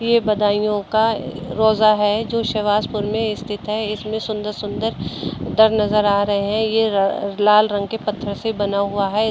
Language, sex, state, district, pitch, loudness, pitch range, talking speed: Hindi, female, Uttar Pradesh, Budaun, 210 Hz, -19 LUFS, 205-220 Hz, 160 wpm